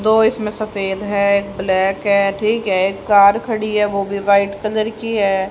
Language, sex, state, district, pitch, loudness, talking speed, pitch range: Hindi, female, Haryana, Rohtak, 200 Hz, -17 LUFS, 195 wpm, 195-215 Hz